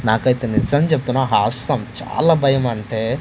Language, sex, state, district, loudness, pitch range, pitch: Telugu, male, Andhra Pradesh, Manyam, -18 LUFS, 115-135 Hz, 125 Hz